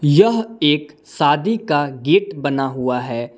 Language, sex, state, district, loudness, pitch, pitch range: Hindi, male, Jharkhand, Palamu, -18 LUFS, 150 Hz, 135-165 Hz